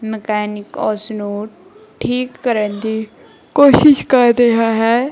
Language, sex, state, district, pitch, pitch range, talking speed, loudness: Punjabi, female, Punjab, Kapurthala, 230 Hz, 215-255 Hz, 115 wpm, -15 LUFS